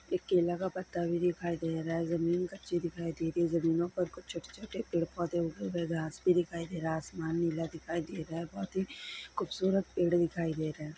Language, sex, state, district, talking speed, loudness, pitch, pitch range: Hindi, female, Bihar, Sitamarhi, 245 wpm, -34 LUFS, 170 Hz, 165-180 Hz